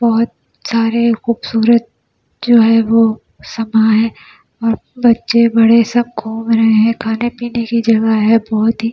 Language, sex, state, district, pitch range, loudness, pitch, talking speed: Hindi, female, Delhi, New Delhi, 225-235 Hz, -13 LUFS, 230 Hz, 150 wpm